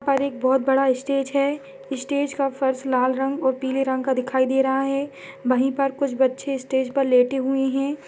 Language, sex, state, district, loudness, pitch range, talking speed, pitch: Hindi, female, Bihar, Purnia, -22 LUFS, 260-275 Hz, 210 wpm, 270 Hz